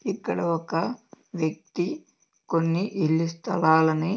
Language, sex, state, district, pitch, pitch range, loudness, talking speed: Telugu, male, Andhra Pradesh, Visakhapatnam, 165 Hz, 160-200 Hz, -25 LUFS, 85 wpm